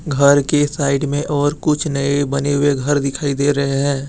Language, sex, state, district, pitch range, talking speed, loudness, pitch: Hindi, male, Jharkhand, Deoghar, 140-145 Hz, 205 wpm, -17 LUFS, 145 Hz